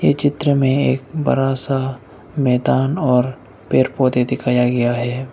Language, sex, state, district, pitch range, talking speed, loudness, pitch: Hindi, male, Arunachal Pradesh, Lower Dibang Valley, 125-135 Hz, 145 wpm, -17 LUFS, 130 Hz